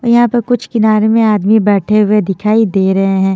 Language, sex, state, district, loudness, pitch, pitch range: Hindi, female, Haryana, Jhajjar, -11 LUFS, 215 Hz, 200-225 Hz